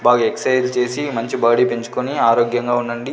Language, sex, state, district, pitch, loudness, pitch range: Telugu, male, Andhra Pradesh, Sri Satya Sai, 120 Hz, -18 LUFS, 115-125 Hz